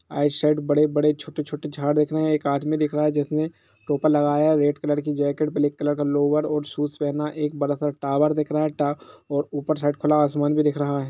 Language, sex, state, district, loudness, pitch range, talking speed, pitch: Hindi, male, Jharkhand, Jamtara, -23 LUFS, 145-150 Hz, 250 wpm, 150 Hz